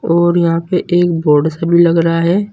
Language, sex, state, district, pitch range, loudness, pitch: Hindi, male, Uttar Pradesh, Saharanpur, 165-175 Hz, -13 LUFS, 170 Hz